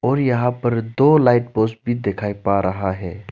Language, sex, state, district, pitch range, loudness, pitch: Hindi, male, Arunachal Pradesh, Lower Dibang Valley, 100-125 Hz, -19 LUFS, 115 Hz